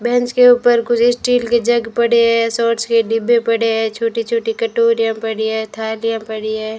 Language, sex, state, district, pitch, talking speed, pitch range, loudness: Hindi, female, Rajasthan, Bikaner, 230 Hz, 185 wpm, 225-235 Hz, -15 LUFS